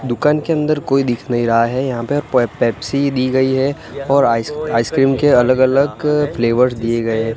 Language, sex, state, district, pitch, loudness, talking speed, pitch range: Hindi, male, Gujarat, Gandhinagar, 130 Hz, -16 LUFS, 205 wpm, 120-140 Hz